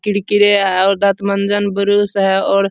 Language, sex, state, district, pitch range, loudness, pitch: Hindi, male, Bihar, Supaul, 195-205 Hz, -14 LUFS, 200 Hz